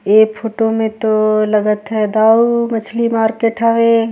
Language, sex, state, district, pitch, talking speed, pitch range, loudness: Surgujia, female, Chhattisgarh, Sarguja, 220 Hz, 145 wpm, 215-230 Hz, -14 LUFS